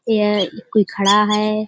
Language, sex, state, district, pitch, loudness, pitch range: Hindi, female, Uttar Pradesh, Budaun, 210 Hz, -17 LUFS, 200-215 Hz